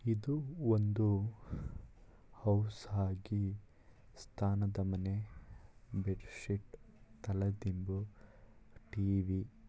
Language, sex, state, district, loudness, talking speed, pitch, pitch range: Kannada, male, Karnataka, Mysore, -38 LUFS, 75 wpm, 100 Hz, 95-110 Hz